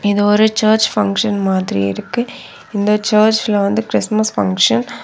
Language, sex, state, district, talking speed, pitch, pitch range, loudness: Tamil, female, Tamil Nadu, Kanyakumari, 145 wpm, 210 Hz, 195-215 Hz, -15 LUFS